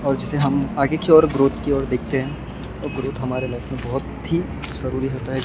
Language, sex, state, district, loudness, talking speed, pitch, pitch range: Hindi, male, Maharashtra, Gondia, -21 LUFS, 230 wpm, 135 Hz, 130-145 Hz